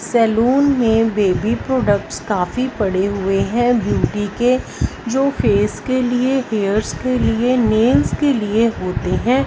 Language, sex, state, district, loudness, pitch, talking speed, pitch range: Hindi, female, Punjab, Fazilka, -17 LUFS, 230 Hz, 140 wpm, 205-255 Hz